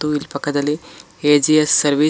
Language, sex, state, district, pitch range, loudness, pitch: Kannada, male, Karnataka, Koppal, 145-155 Hz, -16 LUFS, 150 Hz